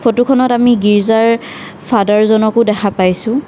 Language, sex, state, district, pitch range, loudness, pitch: Assamese, female, Assam, Kamrup Metropolitan, 210-240 Hz, -12 LUFS, 225 Hz